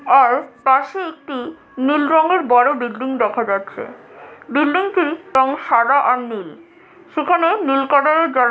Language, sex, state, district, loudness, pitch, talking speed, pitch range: Bengali, female, West Bengal, Jhargram, -17 LUFS, 280 Hz, 135 wpm, 255-335 Hz